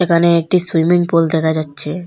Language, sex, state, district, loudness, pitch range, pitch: Bengali, female, Assam, Hailakandi, -14 LUFS, 160-175 Hz, 170 Hz